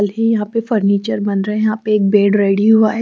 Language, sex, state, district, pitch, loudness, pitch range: Hindi, female, Bihar, Kaimur, 210 Hz, -15 LUFS, 205-220 Hz